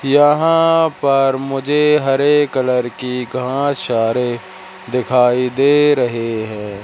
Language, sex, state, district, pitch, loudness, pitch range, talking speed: Hindi, male, Madhya Pradesh, Katni, 135 Hz, -15 LUFS, 125-145 Hz, 105 wpm